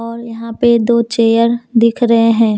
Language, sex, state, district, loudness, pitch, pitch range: Hindi, female, Jharkhand, Deoghar, -12 LUFS, 230 Hz, 230-235 Hz